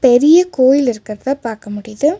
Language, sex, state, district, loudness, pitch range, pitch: Tamil, female, Tamil Nadu, Nilgiris, -14 LUFS, 215-280 Hz, 255 Hz